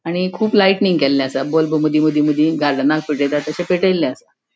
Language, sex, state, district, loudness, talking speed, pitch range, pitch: Konkani, female, Goa, North and South Goa, -16 LUFS, 185 wpm, 150-180 Hz, 155 Hz